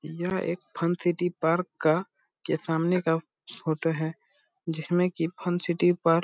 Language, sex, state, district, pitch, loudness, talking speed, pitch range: Hindi, male, Bihar, Purnia, 170 Hz, -28 LUFS, 155 wpm, 160-175 Hz